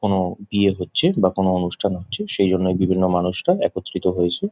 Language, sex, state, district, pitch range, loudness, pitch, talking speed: Bengali, male, West Bengal, Jhargram, 90-100 Hz, -20 LUFS, 95 Hz, 170 wpm